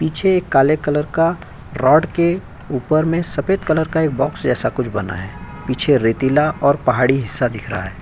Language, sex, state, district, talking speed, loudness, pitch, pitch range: Hindi, male, Uttar Pradesh, Jyotiba Phule Nagar, 195 wpm, -17 LUFS, 150 Hz, 130-165 Hz